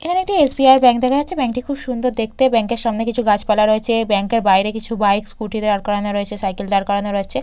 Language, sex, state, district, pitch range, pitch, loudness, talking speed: Bengali, female, West Bengal, Purulia, 205-250 Hz, 225 Hz, -17 LUFS, 240 wpm